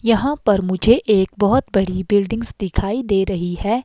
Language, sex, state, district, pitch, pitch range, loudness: Hindi, female, Himachal Pradesh, Shimla, 205 Hz, 190-230 Hz, -18 LUFS